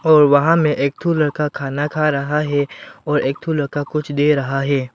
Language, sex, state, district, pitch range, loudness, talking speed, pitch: Hindi, male, Arunachal Pradesh, Lower Dibang Valley, 140-155 Hz, -18 LUFS, 220 wpm, 145 Hz